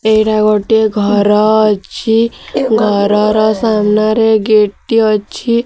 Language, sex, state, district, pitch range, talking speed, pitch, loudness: Odia, female, Odisha, Sambalpur, 210-220 Hz, 95 wpm, 215 Hz, -12 LUFS